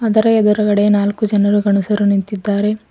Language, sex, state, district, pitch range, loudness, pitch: Kannada, female, Karnataka, Bidar, 205-210 Hz, -15 LUFS, 205 Hz